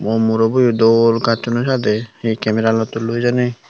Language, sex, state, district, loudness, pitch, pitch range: Chakma, male, Tripura, Unakoti, -16 LUFS, 115 Hz, 110-120 Hz